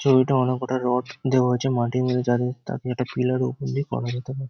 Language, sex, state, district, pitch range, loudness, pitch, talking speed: Bengali, male, West Bengal, Kolkata, 125-130 Hz, -24 LUFS, 125 Hz, 215 wpm